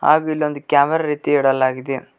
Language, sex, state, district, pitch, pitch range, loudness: Kannada, male, Karnataka, Koppal, 145 Hz, 135-150 Hz, -18 LUFS